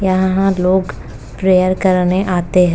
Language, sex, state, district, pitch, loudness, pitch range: Hindi, female, Uttar Pradesh, Jalaun, 185 Hz, -14 LUFS, 180-190 Hz